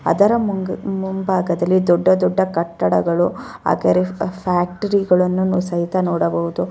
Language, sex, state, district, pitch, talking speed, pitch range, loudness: Kannada, female, Karnataka, Bellary, 180 Hz, 100 wpm, 165-190 Hz, -18 LUFS